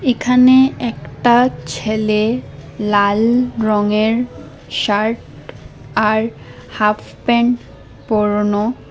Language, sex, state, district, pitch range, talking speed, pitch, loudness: Bengali, female, Assam, Hailakandi, 210-240 Hz, 65 wpm, 220 Hz, -16 LUFS